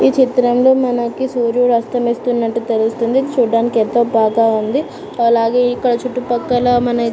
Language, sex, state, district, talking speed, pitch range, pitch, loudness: Telugu, female, Andhra Pradesh, Anantapur, 150 wpm, 230-250 Hz, 240 Hz, -15 LUFS